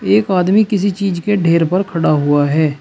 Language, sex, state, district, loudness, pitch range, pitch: Hindi, male, Uttar Pradesh, Shamli, -14 LUFS, 160-200 Hz, 180 Hz